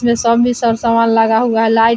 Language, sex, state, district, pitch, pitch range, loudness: Hindi, female, Bihar, Vaishali, 230 Hz, 225-235 Hz, -13 LUFS